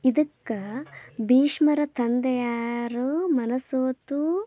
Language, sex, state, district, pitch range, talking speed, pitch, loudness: Kannada, female, Karnataka, Belgaum, 240-290 Hz, 80 wpm, 260 Hz, -25 LUFS